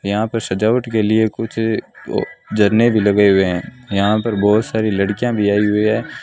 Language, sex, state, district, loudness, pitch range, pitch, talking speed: Hindi, male, Rajasthan, Bikaner, -17 LUFS, 105-115 Hz, 110 Hz, 200 wpm